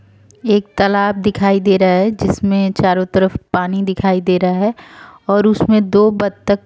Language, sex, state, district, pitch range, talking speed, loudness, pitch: Hindi, female, Uttar Pradesh, Etah, 185-205 Hz, 170 wpm, -15 LUFS, 195 Hz